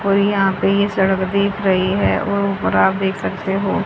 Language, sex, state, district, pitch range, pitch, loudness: Hindi, female, Haryana, Rohtak, 190-200 Hz, 195 Hz, -17 LUFS